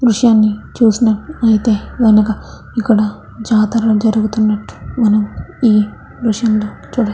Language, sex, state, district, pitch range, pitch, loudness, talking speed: Telugu, female, Andhra Pradesh, Chittoor, 215-230 Hz, 220 Hz, -14 LUFS, 100 wpm